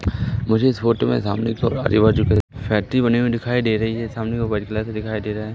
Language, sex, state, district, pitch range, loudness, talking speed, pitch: Hindi, male, Madhya Pradesh, Katni, 110-115 Hz, -20 LUFS, 260 wpm, 110 Hz